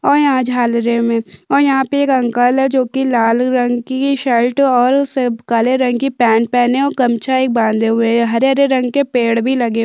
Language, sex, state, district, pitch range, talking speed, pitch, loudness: Hindi, female, Chhattisgarh, Sukma, 235-270 Hz, 220 wpm, 250 Hz, -14 LUFS